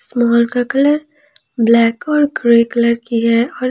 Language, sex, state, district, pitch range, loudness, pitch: Hindi, female, Jharkhand, Ranchi, 235-280 Hz, -14 LUFS, 235 Hz